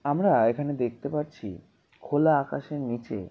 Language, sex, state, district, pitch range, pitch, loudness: Bengali, male, West Bengal, Malda, 120-150 Hz, 145 Hz, -26 LUFS